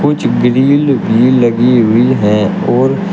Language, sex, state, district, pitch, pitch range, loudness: Hindi, male, Uttar Pradesh, Shamli, 125 Hz, 115-135 Hz, -10 LUFS